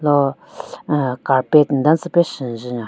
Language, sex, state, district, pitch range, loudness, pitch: Rengma, female, Nagaland, Kohima, 130-150 Hz, -17 LUFS, 140 Hz